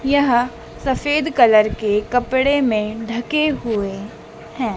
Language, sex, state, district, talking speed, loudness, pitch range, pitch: Hindi, female, Madhya Pradesh, Dhar, 115 wpm, -18 LUFS, 220-270 Hz, 240 Hz